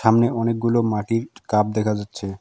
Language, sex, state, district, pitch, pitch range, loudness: Bengali, male, West Bengal, Alipurduar, 110 Hz, 105-115 Hz, -22 LUFS